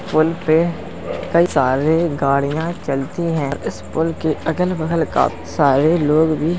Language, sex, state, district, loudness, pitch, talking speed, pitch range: Hindi, male, Uttar Pradesh, Jalaun, -18 LUFS, 160 Hz, 145 wpm, 145-165 Hz